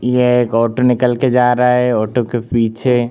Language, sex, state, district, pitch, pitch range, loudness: Hindi, male, Uttar Pradesh, Gorakhpur, 125 Hz, 120-125 Hz, -14 LUFS